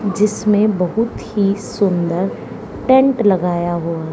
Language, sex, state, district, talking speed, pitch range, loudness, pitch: Hindi, female, Haryana, Charkhi Dadri, 100 wpm, 175-215 Hz, -17 LUFS, 200 Hz